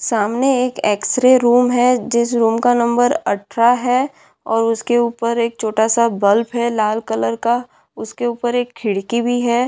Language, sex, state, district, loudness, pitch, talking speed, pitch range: Hindi, female, Bihar, Madhepura, -16 LUFS, 235 Hz, 165 wpm, 225-245 Hz